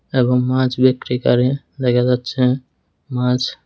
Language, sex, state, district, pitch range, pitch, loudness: Bengali, male, Tripura, West Tripura, 125-130 Hz, 125 Hz, -18 LUFS